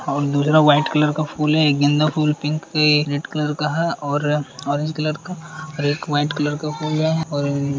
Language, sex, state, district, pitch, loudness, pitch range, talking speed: Hindi, male, Uttar Pradesh, Hamirpur, 150 Hz, -19 LUFS, 145-155 Hz, 200 wpm